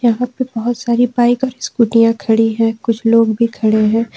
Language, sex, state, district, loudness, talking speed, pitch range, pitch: Hindi, female, Jharkhand, Ranchi, -14 LUFS, 200 wpm, 225-240 Hz, 230 Hz